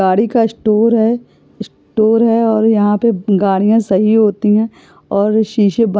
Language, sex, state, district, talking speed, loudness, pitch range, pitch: Hindi, female, Chhattisgarh, Balrampur, 150 wpm, -13 LUFS, 205-225 Hz, 220 Hz